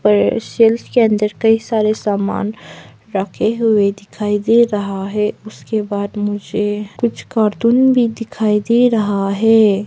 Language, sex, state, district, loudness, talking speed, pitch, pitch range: Hindi, female, Arunachal Pradesh, Papum Pare, -16 LUFS, 135 wpm, 210 Hz, 205-225 Hz